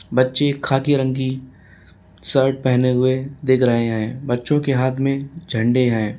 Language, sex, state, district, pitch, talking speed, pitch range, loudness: Hindi, male, Uttar Pradesh, Lalitpur, 130 Hz, 155 wpm, 120-135 Hz, -19 LUFS